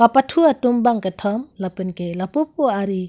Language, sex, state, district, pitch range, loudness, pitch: Karbi, female, Assam, Karbi Anglong, 190-270 Hz, -20 LUFS, 230 Hz